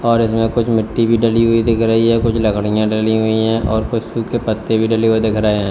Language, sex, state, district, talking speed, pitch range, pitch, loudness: Hindi, male, Uttar Pradesh, Lalitpur, 255 wpm, 110-115 Hz, 115 Hz, -15 LUFS